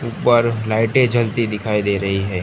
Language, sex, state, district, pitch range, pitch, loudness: Hindi, male, Gujarat, Gandhinagar, 100-120 Hz, 110 Hz, -18 LUFS